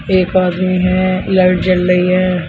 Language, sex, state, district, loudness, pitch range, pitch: Hindi, male, Uttar Pradesh, Shamli, -13 LUFS, 180-185 Hz, 185 Hz